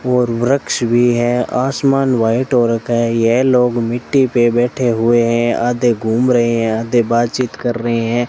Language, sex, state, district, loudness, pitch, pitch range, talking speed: Hindi, male, Rajasthan, Bikaner, -15 LUFS, 120 Hz, 115-125 Hz, 180 wpm